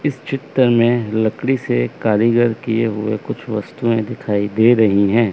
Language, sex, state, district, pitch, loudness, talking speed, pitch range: Hindi, male, Chandigarh, Chandigarh, 115 Hz, -17 LUFS, 155 wpm, 105-120 Hz